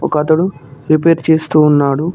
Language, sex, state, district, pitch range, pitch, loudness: Telugu, male, Telangana, Mahabubabad, 145-160 Hz, 155 Hz, -13 LUFS